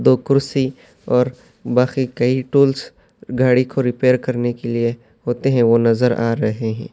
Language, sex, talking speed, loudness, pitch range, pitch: Urdu, male, 165 wpm, -18 LUFS, 115-130 Hz, 125 Hz